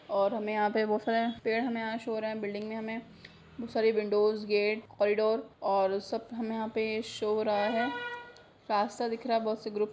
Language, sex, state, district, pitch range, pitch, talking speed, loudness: Hindi, female, Bihar, Begusarai, 210-230 Hz, 220 Hz, 230 wpm, -31 LUFS